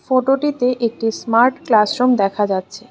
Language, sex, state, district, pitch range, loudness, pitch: Bengali, female, Tripura, West Tripura, 215-255 Hz, -17 LUFS, 240 Hz